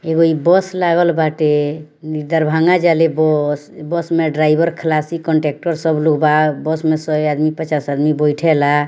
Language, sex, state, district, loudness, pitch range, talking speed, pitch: Bhojpuri, female, Bihar, Muzaffarpur, -16 LUFS, 150-165 Hz, 170 wpm, 155 Hz